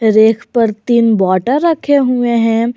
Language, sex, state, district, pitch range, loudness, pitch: Hindi, female, Jharkhand, Garhwa, 220-250 Hz, -12 LUFS, 235 Hz